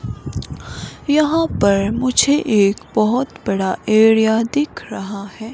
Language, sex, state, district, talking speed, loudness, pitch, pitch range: Hindi, female, Himachal Pradesh, Shimla, 110 wpm, -16 LUFS, 220 Hz, 200-285 Hz